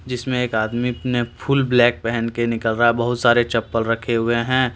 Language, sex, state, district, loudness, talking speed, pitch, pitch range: Hindi, male, Jharkhand, Deoghar, -19 LUFS, 215 wpm, 120 Hz, 115-125 Hz